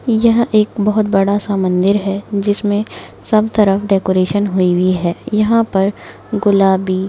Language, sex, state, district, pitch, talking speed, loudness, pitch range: Hindi, female, Maharashtra, Nagpur, 205 Hz, 135 wpm, -15 LUFS, 190-215 Hz